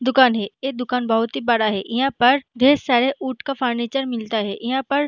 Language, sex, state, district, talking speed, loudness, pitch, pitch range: Hindi, female, Chhattisgarh, Balrampur, 235 wpm, -20 LUFS, 250 Hz, 230-270 Hz